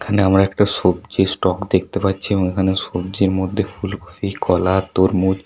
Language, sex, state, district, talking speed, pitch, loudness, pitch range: Bengali, male, West Bengal, Paschim Medinipur, 155 wpm, 95 Hz, -18 LUFS, 95-100 Hz